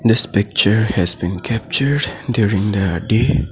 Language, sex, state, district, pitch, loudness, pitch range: English, male, Assam, Sonitpur, 110 Hz, -17 LUFS, 100-115 Hz